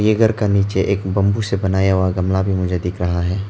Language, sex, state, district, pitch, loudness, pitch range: Hindi, male, Arunachal Pradesh, Lower Dibang Valley, 95 Hz, -18 LUFS, 95-100 Hz